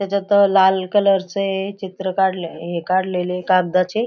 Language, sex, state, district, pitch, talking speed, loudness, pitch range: Marathi, female, Maharashtra, Aurangabad, 190 Hz, 190 wpm, -18 LUFS, 185-200 Hz